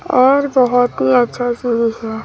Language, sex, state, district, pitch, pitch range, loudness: Hindi, female, Chhattisgarh, Raipur, 245 Hz, 230-255 Hz, -15 LUFS